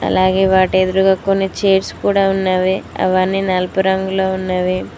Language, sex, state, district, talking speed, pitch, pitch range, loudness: Telugu, female, Telangana, Mahabubabad, 135 wpm, 190 Hz, 185-195 Hz, -15 LUFS